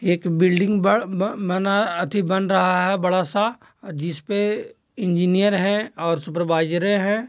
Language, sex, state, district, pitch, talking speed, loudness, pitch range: Hindi, male, Bihar, Jahanabad, 190 Hz, 115 wpm, -21 LUFS, 175-205 Hz